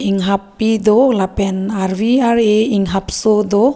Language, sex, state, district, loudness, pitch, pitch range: Karbi, female, Assam, Karbi Anglong, -15 LUFS, 210 Hz, 195-225 Hz